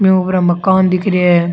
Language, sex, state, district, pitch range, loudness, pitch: Rajasthani, male, Rajasthan, Churu, 175-190 Hz, -13 LUFS, 185 Hz